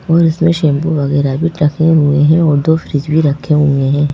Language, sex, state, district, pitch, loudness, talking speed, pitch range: Hindi, female, Madhya Pradesh, Bhopal, 150 Hz, -12 LUFS, 215 wpm, 145-160 Hz